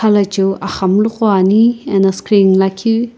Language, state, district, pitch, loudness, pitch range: Sumi, Nagaland, Kohima, 200 Hz, -13 LUFS, 195-220 Hz